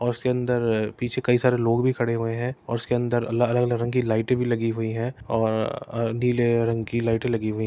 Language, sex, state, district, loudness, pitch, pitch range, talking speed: Hindi, male, Uttar Pradesh, Etah, -24 LUFS, 120 Hz, 115-125 Hz, 260 wpm